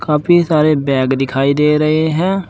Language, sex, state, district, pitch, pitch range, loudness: Hindi, male, Uttar Pradesh, Saharanpur, 150 Hz, 140-160 Hz, -14 LUFS